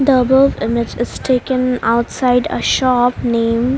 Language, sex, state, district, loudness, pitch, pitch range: English, female, Haryana, Rohtak, -15 LUFS, 250 Hz, 235-260 Hz